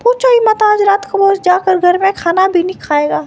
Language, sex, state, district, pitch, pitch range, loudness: Hindi, female, Himachal Pradesh, Shimla, 385 Hz, 355-415 Hz, -12 LUFS